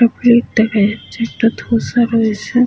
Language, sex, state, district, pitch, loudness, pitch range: Bengali, female, West Bengal, Jhargram, 230 Hz, -15 LUFS, 220-240 Hz